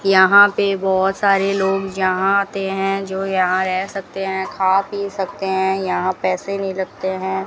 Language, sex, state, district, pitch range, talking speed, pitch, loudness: Hindi, female, Rajasthan, Bikaner, 190-195 Hz, 175 wpm, 195 Hz, -18 LUFS